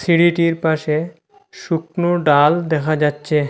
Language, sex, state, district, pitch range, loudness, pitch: Bengali, male, Assam, Hailakandi, 150-170 Hz, -17 LUFS, 160 Hz